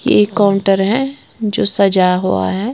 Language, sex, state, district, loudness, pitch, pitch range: Hindi, female, Punjab, Kapurthala, -14 LUFS, 200 Hz, 190-215 Hz